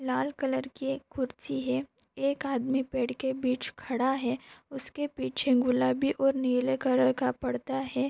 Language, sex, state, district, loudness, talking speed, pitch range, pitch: Hindi, female, Maharashtra, Pune, -30 LUFS, 155 wpm, 245-270 Hz, 260 Hz